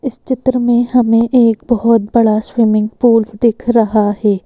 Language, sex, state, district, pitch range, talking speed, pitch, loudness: Hindi, female, Madhya Pradesh, Bhopal, 215-240 Hz, 160 wpm, 230 Hz, -12 LUFS